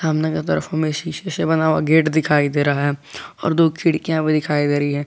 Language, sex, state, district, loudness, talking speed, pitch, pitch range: Hindi, male, Jharkhand, Garhwa, -19 LUFS, 235 wpm, 155 Hz, 145-160 Hz